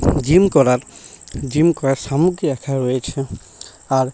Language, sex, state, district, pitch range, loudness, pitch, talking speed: Bengali, male, West Bengal, Paschim Medinipur, 125-145 Hz, -17 LUFS, 135 Hz, 115 wpm